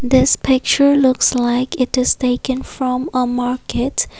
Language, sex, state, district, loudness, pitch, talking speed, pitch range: English, female, Assam, Kamrup Metropolitan, -16 LUFS, 255 Hz, 145 wpm, 250-265 Hz